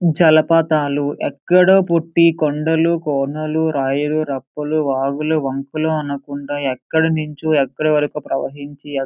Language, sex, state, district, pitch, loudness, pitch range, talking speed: Telugu, male, Andhra Pradesh, Srikakulam, 150 Hz, -18 LUFS, 140-160 Hz, 105 wpm